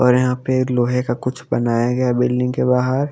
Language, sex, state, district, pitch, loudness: Hindi, female, Haryana, Charkhi Dadri, 125 Hz, -18 LUFS